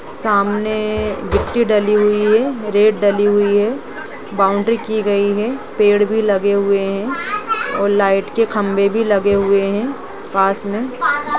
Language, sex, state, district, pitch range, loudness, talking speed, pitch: Hindi, female, Chhattisgarh, Rajnandgaon, 200-220 Hz, -16 LUFS, 145 wpm, 210 Hz